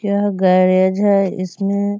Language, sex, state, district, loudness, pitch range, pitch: Hindi, female, Bihar, Sitamarhi, -16 LUFS, 185-200 Hz, 195 Hz